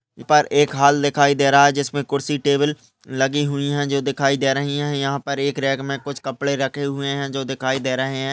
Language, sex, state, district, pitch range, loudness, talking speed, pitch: Hindi, male, Maharashtra, Pune, 135-145 Hz, -20 LUFS, 245 wpm, 140 Hz